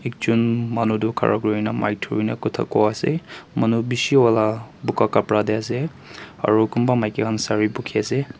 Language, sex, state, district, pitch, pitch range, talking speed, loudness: Nagamese, male, Nagaland, Kohima, 110 Hz, 105-120 Hz, 170 wpm, -21 LUFS